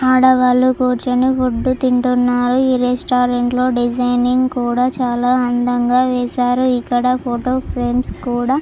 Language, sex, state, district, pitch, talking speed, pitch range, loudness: Telugu, female, Andhra Pradesh, Chittoor, 250 Hz, 110 wpm, 245-255 Hz, -16 LUFS